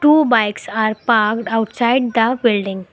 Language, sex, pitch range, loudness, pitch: English, female, 215-240 Hz, -16 LUFS, 225 Hz